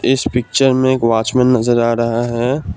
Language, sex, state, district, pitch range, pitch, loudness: Hindi, male, Assam, Kamrup Metropolitan, 115-130 Hz, 125 Hz, -15 LUFS